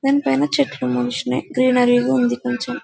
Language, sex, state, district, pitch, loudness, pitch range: Telugu, female, Telangana, Karimnagar, 255 Hz, -19 LUFS, 245-275 Hz